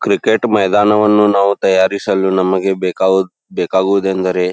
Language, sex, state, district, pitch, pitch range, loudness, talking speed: Kannada, male, Karnataka, Belgaum, 95 Hz, 95-100 Hz, -14 LUFS, 95 wpm